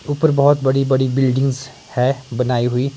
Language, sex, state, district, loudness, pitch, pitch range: Hindi, male, Himachal Pradesh, Shimla, -17 LUFS, 130 Hz, 125-135 Hz